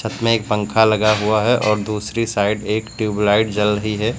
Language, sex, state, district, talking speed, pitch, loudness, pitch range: Hindi, male, Uttar Pradesh, Lucknow, 200 wpm, 110 Hz, -18 LUFS, 105-110 Hz